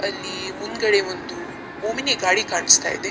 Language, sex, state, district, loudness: Kannada, female, Karnataka, Dakshina Kannada, -20 LUFS